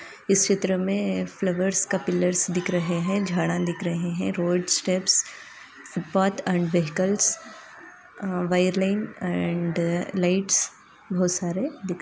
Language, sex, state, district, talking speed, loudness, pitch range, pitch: Hindi, female, Andhra Pradesh, Anantapur, 130 wpm, -24 LUFS, 175-190 Hz, 180 Hz